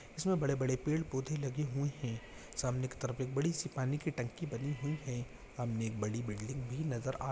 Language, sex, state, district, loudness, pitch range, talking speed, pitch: Hindi, male, Jharkhand, Jamtara, -38 LUFS, 120-150 Hz, 255 wpm, 130 Hz